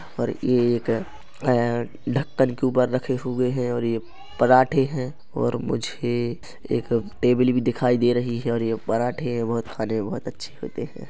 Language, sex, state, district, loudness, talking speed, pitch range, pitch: Hindi, male, Chhattisgarh, Rajnandgaon, -23 LUFS, 165 wpm, 115-125 Hz, 120 Hz